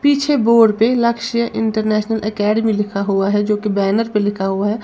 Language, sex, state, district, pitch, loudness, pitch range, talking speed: Hindi, female, Uttar Pradesh, Lalitpur, 215 Hz, -16 LUFS, 205-230 Hz, 200 wpm